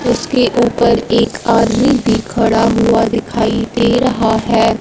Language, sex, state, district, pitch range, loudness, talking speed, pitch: Hindi, female, Punjab, Fazilka, 225-240 Hz, -13 LUFS, 135 wpm, 230 Hz